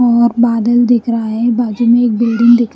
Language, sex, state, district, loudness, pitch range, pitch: Hindi, female, Haryana, Rohtak, -12 LUFS, 230-240 Hz, 235 Hz